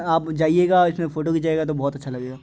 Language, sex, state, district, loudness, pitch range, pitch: Maithili, male, Bihar, Begusarai, -21 LUFS, 140-165 Hz, 160 Hz